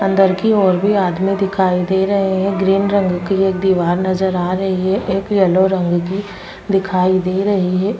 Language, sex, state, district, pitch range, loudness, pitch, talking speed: Hindi, male, Delhi, New Delhi, 185-195 Hz, -16 LUFS, 190 Hz, 195 wpm